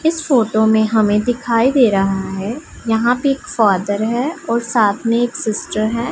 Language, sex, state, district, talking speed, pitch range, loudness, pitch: Hindi, female, Punjab, Pathankot, 185 wpm, 215-245 Hz, -16 LUFS, 230 Hz